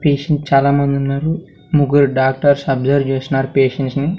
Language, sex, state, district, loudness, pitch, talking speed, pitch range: Telugu, male, Andhra Pradesh, Sri Satya Sai, -16 LUFS, 140 Hz, 115 wpm, 135-145 Hz